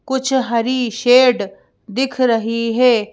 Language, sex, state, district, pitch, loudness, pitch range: Hindi, female, Madhya Pradesh, Bhopal, 245 Hz, -16 LUFS, 230-255 Hz